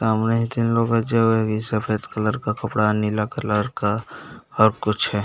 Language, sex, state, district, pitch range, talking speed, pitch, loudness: Hindi, male, Chhattisgarh, Bastar, 105-115 Hz, 195 wpm, 110 Hz, -21 LUFS